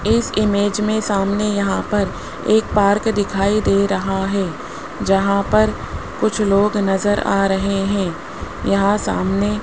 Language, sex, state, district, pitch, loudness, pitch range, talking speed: Hindi, male, Rajasthan, Jaipur, 200 Hz, -18 LUFS, 195-210 Hz, 145 wpm